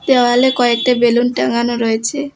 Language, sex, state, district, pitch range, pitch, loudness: Bengali, female, West Bengal, Alipurduar, 235-255 Hz, 245 Hz, -14 LUFS